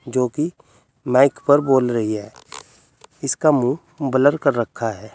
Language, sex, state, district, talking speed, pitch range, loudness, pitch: Hindi, male, Uttar Pradesh, Saharanpur, 150 wpm, 115-145 Hz, -19 LUFS, 130 Hz